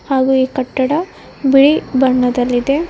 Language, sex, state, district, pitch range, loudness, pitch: Kannada, female, Karnataka, Koppal, 255-280 Hz, -14 LUFS, 265 Hz